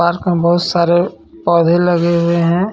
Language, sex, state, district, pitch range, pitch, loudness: Hindi, male, Jharkhand, Ranchi, 170-175 Hz, 170 Hz, -14 LUFS